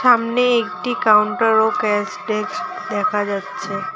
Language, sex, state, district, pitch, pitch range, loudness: Bengali, female, West Bengal, Alipurduar, 215 Hz, 210-235 Hz, -18 LUFS